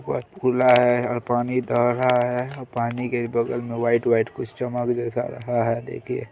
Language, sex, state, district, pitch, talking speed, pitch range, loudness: Hindi, male, Bihar, Araria, 120 Hz, 190 wpm, 120-125 Hz, -23 LUFS